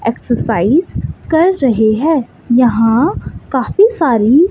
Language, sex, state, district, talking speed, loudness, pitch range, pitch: Hindi, female, Chandigarh, Chandigarh, 95 wpm, -13 LUFS, 235-330 Hz, 285 Hz